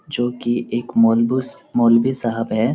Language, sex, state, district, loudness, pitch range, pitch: Hindi, male, Bihar, Lakhisarai, -18 LUFS, 115-120 Hz, 120 Hz